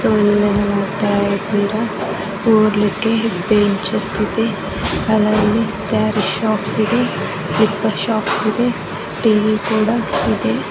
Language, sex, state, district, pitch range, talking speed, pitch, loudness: Kannada, female, Karnataka, Bijapur, 200-220 Hz, 95 wpm, 210 Hz, -17 LUFS